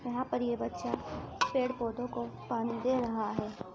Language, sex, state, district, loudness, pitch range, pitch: Hindi, female, Uttar Pradesh, Ghazipur, -34 LUFS, 210-245 Hz, 235 Hz